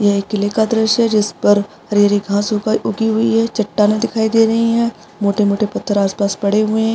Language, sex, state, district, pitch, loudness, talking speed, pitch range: Hindi, female, Maharashtra, Aurangabad, 215 Hz, -16 LUFS, 225 wpm, 205-225 Hz